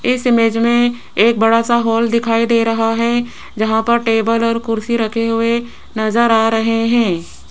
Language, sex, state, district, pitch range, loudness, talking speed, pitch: Hindi, female, Rajasthan, Jaipur, 225-235 Hz, -15 LUFS, 175 wpm, 230 Hz